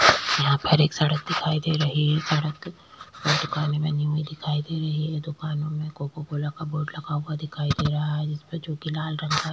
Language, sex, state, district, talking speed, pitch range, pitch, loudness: Hindi, female, Chhattisgarh, Korba, 215 wpm, 150-155 Hz, 155 Hz, -25 LUFS